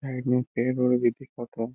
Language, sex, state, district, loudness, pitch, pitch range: Bhojpuri, male, Bihar, Saran, -26 LUFS, 125 Hz, 120-130 Hz